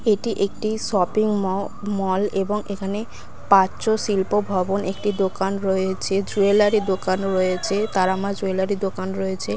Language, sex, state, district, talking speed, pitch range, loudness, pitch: Bengali, female, West Bengal, Dakshin Dinajpur, 125 wpm, 190-205 Hz, -22 LUFS, 195 Hz